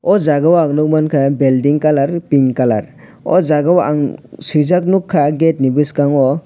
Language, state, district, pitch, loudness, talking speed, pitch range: Kokborok, Tripura, West Tripura, 150 Hz, -14 LUFS, 165 wpm, 140-165 Hz